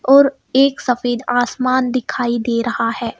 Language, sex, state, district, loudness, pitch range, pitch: Hindi, female, Madhya Pradesh, Bhopal, -17 LUFS, 235-260 Hz, 245 Hz